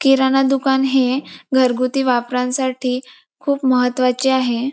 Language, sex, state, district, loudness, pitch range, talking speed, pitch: Marathi, female, Maharashtra, Chandrapur, -17 LUFS, 250-270 Hz, 100 wpm, 260 Hz